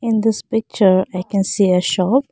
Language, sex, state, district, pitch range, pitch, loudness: English, female, Arunachal Pradesh, Lower Dibang Valley, 185-225 Hz, 200 Hz, -17 LUFS